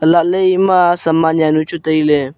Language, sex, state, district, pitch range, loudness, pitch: Wancho, male, Arunachal Pradesh, Longding, 155-175 Hz, -13 LUFS, 160 Hz